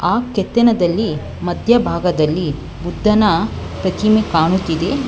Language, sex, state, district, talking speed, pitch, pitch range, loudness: Kannada, female, Karnataka, Bangalore, 70 wpm, 200 Hz, 170-225 Hz, -16 LUFS